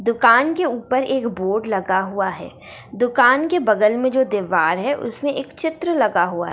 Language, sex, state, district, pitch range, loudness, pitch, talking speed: Hindi, female, Bihar, Gaya, 200-265 Hz, -18 LUFS, 235 Hz, 195 wpm